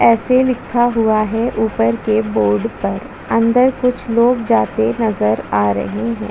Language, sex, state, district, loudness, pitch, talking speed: Hindi, female, Chhattisgarh, Bastar, -16 LUFS, 225 Hz, 150 wpm